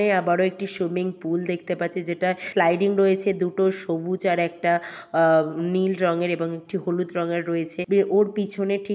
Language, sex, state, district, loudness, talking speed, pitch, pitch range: Bengali, female, West Bengal, Kolkata, -23 LUFS, 190 wpm, 180 Hz, 170-190 Hz